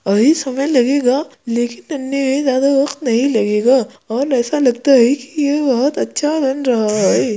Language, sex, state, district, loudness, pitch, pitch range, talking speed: Hindi, female, Uttar Pradesh, Jyotiba Phule Nagar, -15 LUFS, 265 Hz, 240-280 Hz, 165 wpm